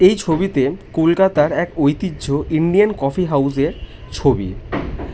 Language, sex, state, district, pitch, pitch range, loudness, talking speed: Bengali, male, West Bengal, North 24 Parganas, 145 Hz, 135-180 Hz, -18 LUFS, 130 wpm